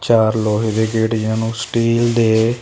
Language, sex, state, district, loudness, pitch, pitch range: Punjabi, male, Punjab, Kapurthala, -16 LUFS, 110 Hz, 110-115 Hz